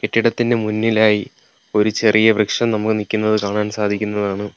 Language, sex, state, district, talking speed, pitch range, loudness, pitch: Malayalam, male, Kerala, Kollam, 120 wpm, 105-110 Hz, -17 LUFS, 105 Hz